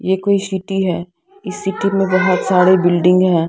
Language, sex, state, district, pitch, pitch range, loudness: Hindi, female, Bihar, Patna, 185 Hz, 180-195 Hz, -15 LUFS